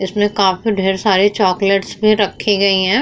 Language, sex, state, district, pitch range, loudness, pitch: Hindi, female, Uttar Pradesh, Muzaffarnagar, 190-205 Hz, -15 LUFS, 200 Hz